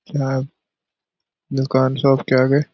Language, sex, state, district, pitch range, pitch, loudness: Hindi, male, Bihar, Kishanganj, 130-140 Hz, 135 Hz, -18 LUFS